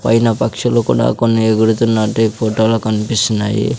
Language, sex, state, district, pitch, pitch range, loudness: Telugu, male, Andhra Pradesh, Sri Satya Sai, 110 Hz, 110-115 Hz, -14 LUFS